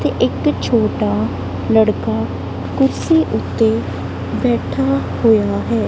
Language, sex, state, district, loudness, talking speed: Punjabi, female, Punjab, Kapurthala, -17 LUFS, 90 wpm